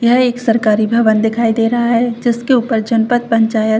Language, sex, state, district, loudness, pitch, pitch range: Hindi, female, Chhattisgarh, Rajnandgaon, -14 LUFS, 230 Hz, 225-240 Hz